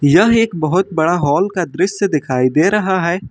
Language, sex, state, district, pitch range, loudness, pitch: Hindi, male, Uttar Pradesh, Lucknow, 155-190 Hz, -15 LUFS, 180 Hz